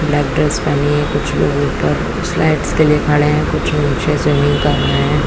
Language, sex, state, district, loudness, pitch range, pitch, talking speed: Hindi, female, Chhattisgarh, Bilaspur, -15 LUFS, 145-155 Hz, 150 Hz, 215 wpm